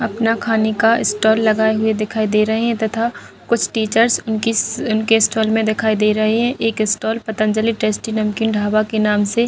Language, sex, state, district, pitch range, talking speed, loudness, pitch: Hindi, female, Chhattisgarh, Bilaspur, 215-225 Hz, 185 wpm, -17 LUFS, 220 Hz